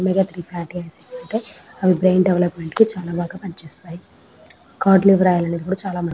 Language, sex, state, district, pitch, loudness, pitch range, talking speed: Telugu, female, Telangana, Nalgonda, 185 Hz, -19 LUFS, 175-195 Hz, 125 wpm